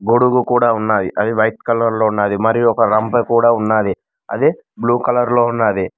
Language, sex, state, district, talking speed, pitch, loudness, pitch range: Telugu, male, Telangana, Mahabubabad, 180 wpm, 115 Hz, -15 LUFS, 110-120 Hz